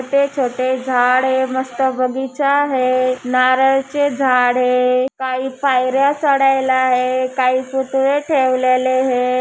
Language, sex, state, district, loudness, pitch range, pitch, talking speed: Marathi, female, Maharashtra, Chandrapur, -16 LUFS, 255-270 Hz, 260 Hz, 115 wpm